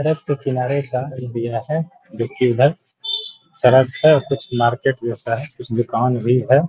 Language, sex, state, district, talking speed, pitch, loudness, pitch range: Hindi, male, Bihar, Gaya, 190 wpm, 130 Hz, -19 LUFS, 120-145 Hz